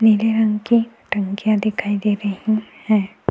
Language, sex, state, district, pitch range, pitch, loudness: Hindi, female, Goa, North and South Goa, 205-220 Hz, 215 Hz, -19 LUFS